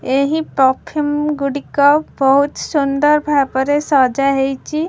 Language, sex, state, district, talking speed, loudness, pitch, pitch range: Odia, female, Odisha, Khordha, 85 wpm, -15 LUFS, 285 Hz, 270-295 Hz